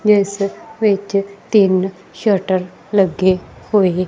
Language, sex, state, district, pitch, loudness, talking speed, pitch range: Punjabi, female, Punjab, Kapurthala, 195 Hz, -17 LUFS, 90 wpm, 185-205 Hz